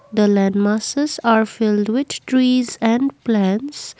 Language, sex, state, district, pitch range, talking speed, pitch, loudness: English, female, Assam, Kamrup Metropolitan, 210-255 Hz, 120 wpm, 225 Hz, -18 LUFS